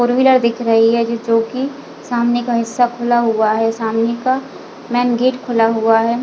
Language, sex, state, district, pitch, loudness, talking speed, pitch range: Hindi, female, Chhattisgarh, Bilaspur, 235 Hz, -16 LUFS, 195 wpm, 225-245 Hz